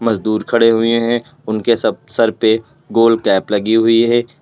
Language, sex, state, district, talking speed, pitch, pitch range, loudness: Hindi, male, Uttar Pradesh, Lalitpur, 175 wpm, 115 Hz, 110-120 Hz, -15 LUFS